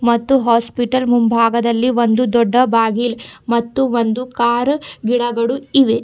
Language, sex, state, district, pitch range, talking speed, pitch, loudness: Kannada, female, Karnataka, Bidar, 235-250 Hz, 110 wpm, 235 Hz, -16 LUFS